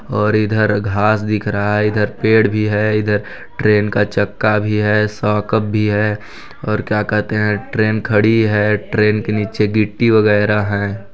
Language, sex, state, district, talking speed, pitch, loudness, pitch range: Hindi, male, Chhattisgarh, Balrampur, 170 wpm, 105 Hz, -16 LUFS, 105-110 Hz